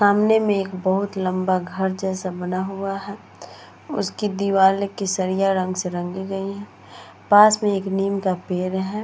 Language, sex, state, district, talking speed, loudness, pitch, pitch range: Hindi, female, Uttar Pradesh, Muzaffarnagar, 165 wpm, -21 LUFS, 195 Hz, 185-200 Hz